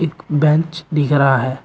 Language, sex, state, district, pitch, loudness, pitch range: Hindi, male, Uttar Pradesh, Shamli, 150 Hz, -16 LUFS, 140-160 Hz